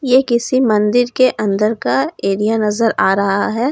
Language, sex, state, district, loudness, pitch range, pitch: Hindi, female, Uttar Pradesh, Lalitpur, -15 LUFS, 210-255 Hz, 225 Hz